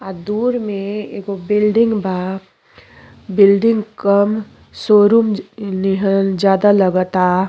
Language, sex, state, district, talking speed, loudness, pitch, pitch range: Bhojpuri, female, Uttar Pradesh, Deoria, 95 wpm, -16 LUFS, 200 Hz, 190-210 Hz